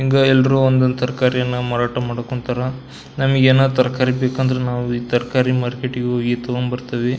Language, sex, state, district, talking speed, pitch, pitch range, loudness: Kannada, male, Karnataka, Belgaum, 135 wpm, 125 Hz, 125-130 Hz, -18 LUFS